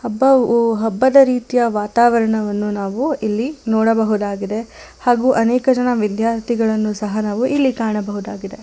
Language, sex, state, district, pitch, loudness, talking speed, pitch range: Kannada, female, Karnataka, Bangalore, 230 Hz, -17 LUFS, 105 wpm, 215-250 Hz